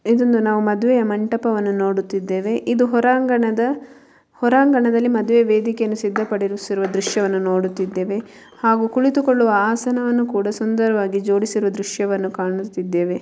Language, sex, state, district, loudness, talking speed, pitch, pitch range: Kannada, female, Karnataka, Mysore, -19 LUFS, 95 wpm, 215 Hz, 200-235 Hz